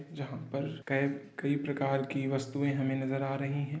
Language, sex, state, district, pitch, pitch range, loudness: Hindi, male, Uttar Pradesh, Varanasi, 140 Hz, 135-140 Hz, -33 LUFS